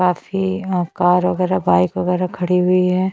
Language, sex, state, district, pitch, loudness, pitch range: Hindi, female, Chhattisgarh, Bastar, 180 Hz, -17 LUFS, 180-185 Hz